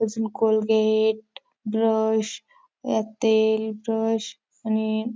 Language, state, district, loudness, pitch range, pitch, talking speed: Bhili, Maharashtra, Dhule, -23 LUFS, 220-225 Hz, 220 Hz, 70 wpm